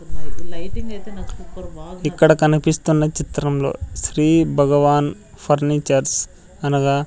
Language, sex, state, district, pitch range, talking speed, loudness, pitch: Telugu, male, Andhra Pradesh, Sri Satya Sai, 145-160 Hz, 60 wpm, -18 LUFS, 150 Hz